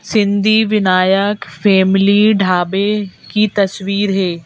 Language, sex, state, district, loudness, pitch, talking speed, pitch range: Hindi, female, Madhya Pradesh, Bhopal, -14 LUFS, 200 Hz, 95 wpm, 190-210 Hz